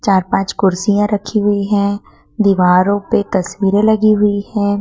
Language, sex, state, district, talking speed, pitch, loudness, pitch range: Hindi, female, Madhya Pradesh, Dhar, 150 wpm, 205 Hz, -14 LUFS, 195-210 Hz